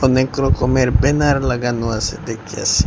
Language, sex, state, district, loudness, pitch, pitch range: Bengali, female, Assam, Hailakandi, -17 LUFS, 130 Hz, 120-135 Hz